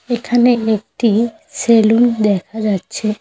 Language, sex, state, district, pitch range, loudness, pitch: Bengali, female, West Bengal, Cooch Behar, 215-240 Hz, -15 LUFS, 225 Hz